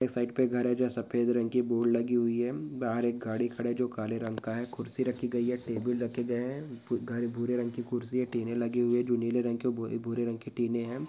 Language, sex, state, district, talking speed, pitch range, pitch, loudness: Hindi, male, Uttar Pradesh, Etah, 285 wpm, 120-125 Hz, 120 Hz, -31 LUFS